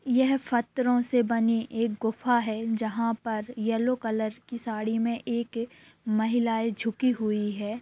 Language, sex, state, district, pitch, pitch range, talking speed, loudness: Hindi, female, Bihar, Saran, 230 Hz, 220-240 Hz, 145 wpm, -28 LUFS